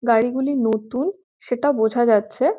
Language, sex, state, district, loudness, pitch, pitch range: Bengali, female, West Bengal, Jhargram, -20 LUFS, 240 Hz, 220-275 Hz